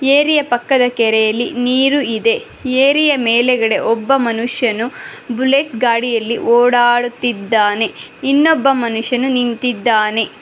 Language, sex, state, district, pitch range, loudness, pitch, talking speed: Kannada, female, Karnataka, Bangalore, 230-265 Hz, -14 LUFS, 245 Hz, 85 wpm